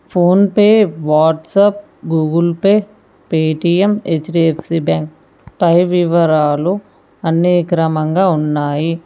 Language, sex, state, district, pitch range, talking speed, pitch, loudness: Telugu, female, Telangana, Mahabubabad, 160-190 Hz, 95 wpm, 170 Hz, -14 LUFS